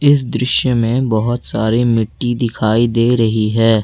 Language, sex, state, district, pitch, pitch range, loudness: Hindi, male, Jharkhand, Ranchi, 115 Hz, 110-125 Hz, -15 LUFS